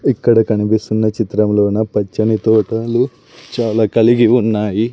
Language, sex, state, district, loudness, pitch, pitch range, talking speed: Telugu, male, Andhra Pradesh, Sri Satya Sai, -15 LUFS, 110 Hz, 110-115 Hz, 95 wpm